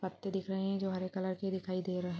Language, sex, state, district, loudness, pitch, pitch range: Hindi, female, Uttar Pradesh, Jyotiba Phule Nagar, -37 LUFS, 185 Hz, 185-195 Hz